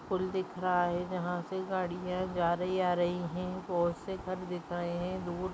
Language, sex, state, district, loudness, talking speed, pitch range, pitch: Bhojpuri, female, Uttar Pradesh, Gorakhpur, -34 LUFS, 215 wpm, 175-185 Hz, 180 Hz